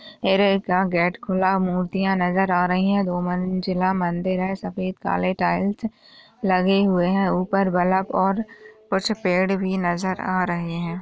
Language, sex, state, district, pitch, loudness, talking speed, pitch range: Hindi, female, Uttar Pradesh, Varanasi, 185 Hz, -22 LUFS, 150 wpm, 180-195 Hz